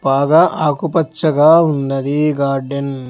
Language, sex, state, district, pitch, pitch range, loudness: Telugu, male, Telangana, Hyderabad, 145 Hz, 140-160 Hz, -14 LUFS